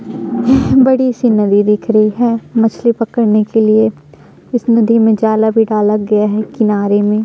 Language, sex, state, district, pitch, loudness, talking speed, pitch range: Hindi, female, Chhattisgarh, Sukma, 220 Hz, -12 LUFS, 175 wpm, 210-230 Hz